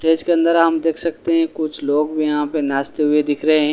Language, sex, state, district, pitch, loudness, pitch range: Hindi, male, Delhi, New Delhi, 155 Hz, -18 LUFS, 150-165 Hz